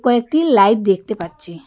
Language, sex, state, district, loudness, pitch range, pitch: Bengali, female, West Bengal, Darjeeling, -15 LUFS, 170-245 Hz, 215 Hz